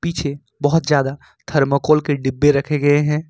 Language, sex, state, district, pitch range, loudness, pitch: Hindi, male, Jharkhand, Ranchi, 140-150 Hz, -18 LUFS, 145 Hz